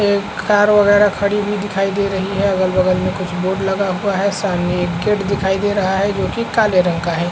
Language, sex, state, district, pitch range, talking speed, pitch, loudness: Hindi, male, Maharashtra, Chandrapur, 185-205 Hz, 245 wpm, 195 Hz, -16 LUFS